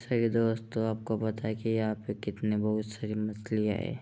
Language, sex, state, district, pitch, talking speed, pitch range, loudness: Hindi, male, Bihar, Samastipur, 110 Hz, 180 wpm, 105-115 Hz, -31 LUFS